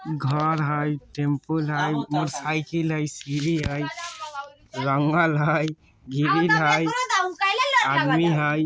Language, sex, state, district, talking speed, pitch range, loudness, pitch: Bajjika, male, Bihar, Vaishali, 105 wpm, 150-170 Hz, -23 LUFS, 155 Hz